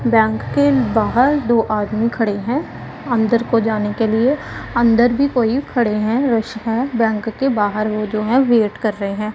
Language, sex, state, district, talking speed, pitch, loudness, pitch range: Hindi, female, Punjab, Pathankot, 185 wpm, 230 Hz, -17 LUFS, 215-245 Hz